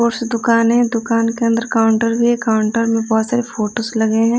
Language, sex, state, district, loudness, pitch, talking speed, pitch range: Hindi, female, Odisha, Nuapada, -16 LUFS, 230 Hz, 230 wpm, 225-235 Hz